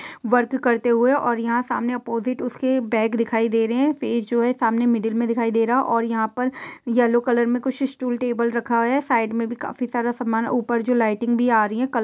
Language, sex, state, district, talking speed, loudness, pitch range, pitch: Hindi, female, Bihar, East Champaran, 235 wpm, -21 LUFS, 230-250 Hz, 240 Hz